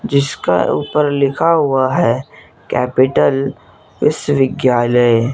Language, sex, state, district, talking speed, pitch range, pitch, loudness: Hindi, male, Jharkhand, Garhwa, 90 wpm, 125-145 Hz, 135 Hz, -15 LUFS